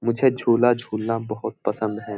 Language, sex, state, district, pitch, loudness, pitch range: Hindi, male, Uttar Pradesh, Jyotiba Phule Nagar, 115 Hz, -22 LUFS, 110-120 Hz